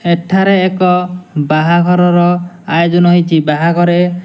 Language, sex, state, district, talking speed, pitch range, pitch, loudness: Odia, male, Odisha, Nuapada, 100 wpm, 170-180 Hz, 175 Hz, -11 LUFS